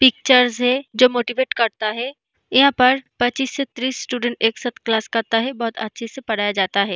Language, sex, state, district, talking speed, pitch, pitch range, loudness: Hindi, female, Bihar, East Champaran, 200 wpm, 245 Hz, 225-260 Hz, -19 LUFS